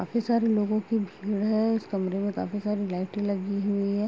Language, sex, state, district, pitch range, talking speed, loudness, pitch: Hindi, female, Uttar Pradesh, Gorakhpur, 200-215 Hz, 220 wpm, -27 LUFS, 205 Hz